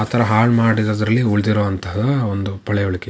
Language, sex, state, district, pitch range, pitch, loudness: Kannada, male, Karnataka, Shimoga, 100-115 Hz, 110 Hz, -18 LUFS